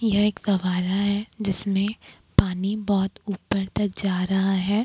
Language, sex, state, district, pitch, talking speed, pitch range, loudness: Hindi, female, Chhattisgarh, Bilaspur, 200 Hz, 150 wpm, 190-205 Hz, -24 LUFS